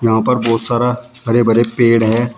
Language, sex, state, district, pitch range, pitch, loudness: Hindi, male, Uttar Pradesh, Shamli, 115-120 Hz, 120 Hz, -14 LUFS